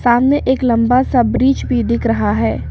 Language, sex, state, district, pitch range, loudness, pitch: Hindi, female, Arunachal Pradesh, Papum Pare, 230-255 Hz, -14 LUFS, 240 Hz